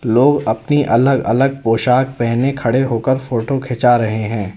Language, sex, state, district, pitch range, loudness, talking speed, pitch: Hindi, male, Uttar Pradesh, Lalitpur, 115-135 Hz, -15 LUFS, 155 wpm, 125 Hz